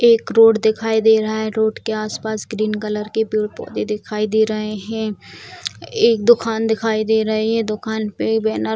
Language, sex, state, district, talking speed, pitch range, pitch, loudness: Hindi, female, Bihar, Purnia, 185 wpm, 215-225 Hz, 220 Hz, -18 LUFS